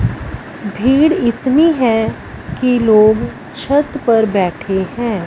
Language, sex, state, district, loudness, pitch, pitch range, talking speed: Hindi, female, Punjab, Fazilka, -14 LUFS, 235 Hz, 215-265 Hz, 100 wpm